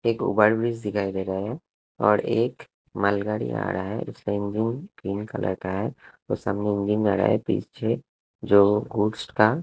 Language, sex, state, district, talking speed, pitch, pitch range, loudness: Hindi, male, Punjab, Kapurthala, 175 wpm, 105 Hz, 100-110 Hz, -25 LUFS